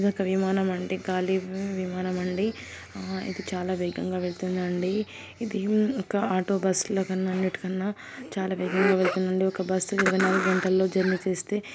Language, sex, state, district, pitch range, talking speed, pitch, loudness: Telugu, female, Telangana, Karimnagar, 185-195 Hz, 150 wpm, 190 Hz, -27 LUFS